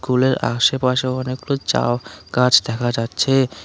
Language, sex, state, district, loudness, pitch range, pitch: Bengali, male, West Bengal, Alipurduar, -19 LUFS, 120-130 Hz, 125 Hz